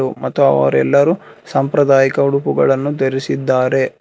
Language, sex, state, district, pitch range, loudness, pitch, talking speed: Kannada, male, Karnataka, Bangalore, 130-140 Hz, -15 LUFS, 135 Hz, 75 wpm